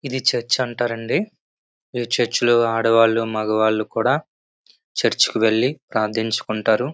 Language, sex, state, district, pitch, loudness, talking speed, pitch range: Telugu, male, Andhra Pradesh, Srikakulam, 115 Hz, -20 LUFS, 115 wpm, 110-120 Hz